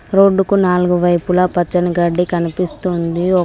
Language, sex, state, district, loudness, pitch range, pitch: Telugu, female, Telangana, Mahabubabad, -15 LUFS, 175-185 Hz, 180 Hz